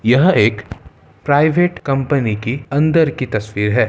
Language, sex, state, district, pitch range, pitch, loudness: Hindi, male, Bihar, Gaya, 105-145 Hz, 130 Hz, -16 LUFS